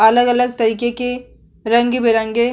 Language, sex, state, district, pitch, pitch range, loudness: Hindi, female, Bihar, Vaishali, 240 Hz, 225-245 Hz, -16 LUFS